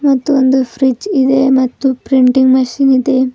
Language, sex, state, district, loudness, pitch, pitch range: Kannada, female, Karnataka, Bidar, -12 LUFS, 265 Hz, 260-270 Hz